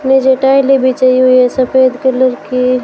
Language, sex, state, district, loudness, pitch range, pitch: Hindi, female, Rajasthan, Bikaner, -10 LUFS, 255-265 Hz, 260 Hz